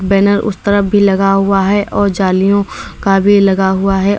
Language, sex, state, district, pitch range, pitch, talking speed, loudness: Hindi, female, Uttar Pradesh, Lalitpur, 195-205 Hz, 195 Hz, 200 wpm, -12 LUFS